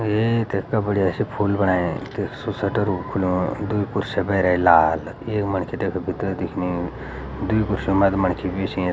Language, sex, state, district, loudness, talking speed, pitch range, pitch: Garhwali, male, Uttarakhand, Uttarkashi, -22 LUFS, 190 wpm, 90-105 Hz, 95 Hz